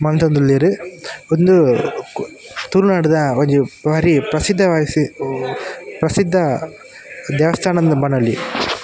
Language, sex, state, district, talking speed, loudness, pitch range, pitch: Tulu, male, Karnataka, Dakshina Kannada, 75 wpm, -16 LUFS, 145-180 Hz, 155 Hz